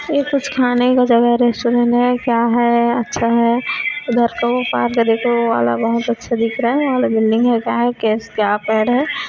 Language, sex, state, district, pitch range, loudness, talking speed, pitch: Hindi, female, Chhattisgarh, Korba, 230-245 Hz, -16 LUFS, 215 wpm, 240 Hz